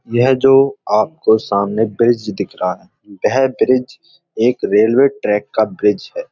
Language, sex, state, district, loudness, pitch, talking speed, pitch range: Hindi, male, Uttar Pradesh, Budaun, -15 LUFS, 115 Hz, 150 wpm, 105-135 Hz